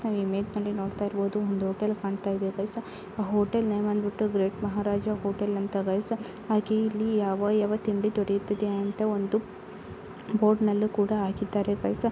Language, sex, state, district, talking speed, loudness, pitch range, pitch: Kannada, female, Karnataka, Gulbarga, 155 wpm, -28 LUFS, 200-215 Hz, 205 Hz